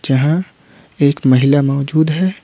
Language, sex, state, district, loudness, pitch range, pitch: Hindi, male, Jharkhand, Ranchi, -14 LUFS, 140-160 Hz, 145 Hz